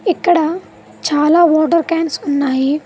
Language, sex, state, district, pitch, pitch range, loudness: Telugu, female, Telangana, Mahabubabad, 320 Hz, 295-335 Hz, -14 LUFS